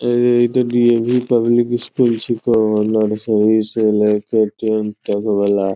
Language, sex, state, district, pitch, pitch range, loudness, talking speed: Angika, male, Bihar, Bhagalpur, 110 Hz, 105-120 Hz, -16 LUFS, 135 wpm